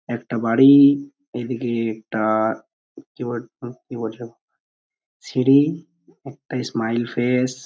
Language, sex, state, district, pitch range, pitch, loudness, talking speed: Bengali, male, West Bengal, Purulia, 115-135 Hz, 120 Hz, -20 LUFS, 125 wpm